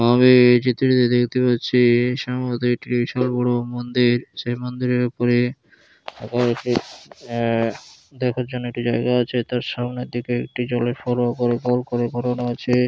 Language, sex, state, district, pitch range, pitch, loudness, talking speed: Bengali, male, West Bengal, Jalpaiguri, 120-125 Hz, 120 Hz, -20 LUFS, 145 wpm